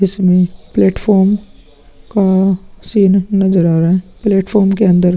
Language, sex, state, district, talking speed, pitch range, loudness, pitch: Hindi, male, Uttar Pradesh, Muzaffarnagar, 140 wpm, 180-195 Hz, -13 LUFS, 190 Hz